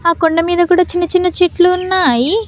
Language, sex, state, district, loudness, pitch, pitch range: Telugu, female, Andhra Pradesh, Annamaya, -13 LUFS, 355 Hz, 335-360 Hz